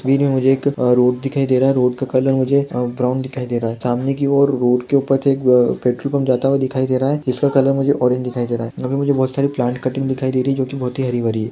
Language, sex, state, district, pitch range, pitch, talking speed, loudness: Hindi, male, Chhattisgarh, Kabirdham, 125-135 Hz, 130 Hz, 285 wpm, -17 LUFS